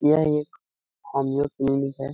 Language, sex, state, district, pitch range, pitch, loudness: Hindi, male, Bihar, Jahanabad, 135-150 Hz, 140 Hz, -24 LUFS